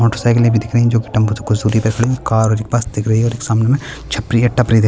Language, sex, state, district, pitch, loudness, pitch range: Hindi, male, Chhattisgarh, Kabirdham, 115 Hz, -15 LUFS, 110-120 Hz